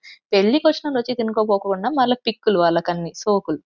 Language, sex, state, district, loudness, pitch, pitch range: Telugu, female, Andhra Pradesh, Anantapur, -20 LUFS, 210 Hz, 185-250 Hz